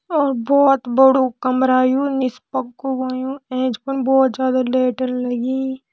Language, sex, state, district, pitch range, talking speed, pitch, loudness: Kumaoni, female, Uttarakhand, Tehri Garhwal, 255-270 Hz, 140 wpm, 260 Hz, -18 LUFS